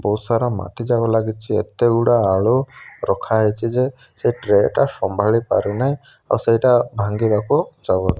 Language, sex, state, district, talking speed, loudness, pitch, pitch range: Odia, male, Odisha, Malkangiri, 160 wpm, -19 LUFS, 115 Hz, 105-120 Hz